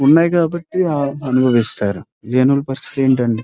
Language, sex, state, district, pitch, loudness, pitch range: Telugu, male, Andhra Pradesh, Krishna, 135 Hz, -17 LUFS, 125-155 Hz